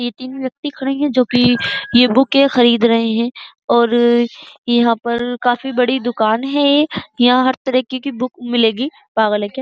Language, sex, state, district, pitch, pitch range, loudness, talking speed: Hindi, female, Uttar Pradesh, Jyotiba Phule Nagar, 245 Hz, 235-265 Hz, -15 LUFS, 170 wpm